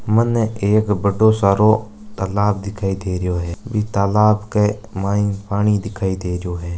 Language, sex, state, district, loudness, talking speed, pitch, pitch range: Marwari, male, Rajasthan, Nagaur, -18 LUFS, 160 wpm, 100 Hz, 95-105 Hz